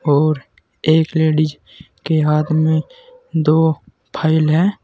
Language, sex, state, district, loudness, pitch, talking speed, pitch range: Hindi, male, Uttar Pradesh, Saharanpur, -16 LUFS, 155 Hz, 110 wpm, 155-160 Hz